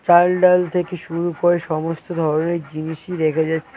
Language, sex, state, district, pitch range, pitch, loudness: Bengali, male, West Bengal, Cooch Behar, 160-175 Hz, 170 Hz, -19 LUFS